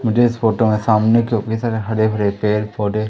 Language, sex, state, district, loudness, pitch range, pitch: Hindi, male, Madhya Pradesh, Umaria, -17 LUFS, 105-115 Hz, 110 Hz